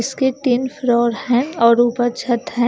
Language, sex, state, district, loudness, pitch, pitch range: Hindi, female, Chandigarh, Chandigarh, -17 LUFS, 245 Hz, 235-260 Hz